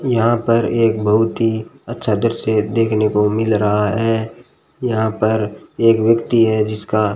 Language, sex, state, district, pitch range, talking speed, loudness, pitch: Hindi, male, Rajasthan, Bikaner, 110-115 Hz, 160 wpm, -17 LUFS, 110 Hz